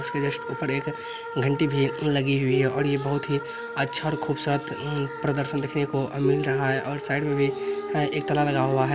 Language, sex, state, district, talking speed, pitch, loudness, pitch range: Maithili, male, Bihar, Araria, 215 wpm, 140 Hz, -25 LUFS, 140-155 Hz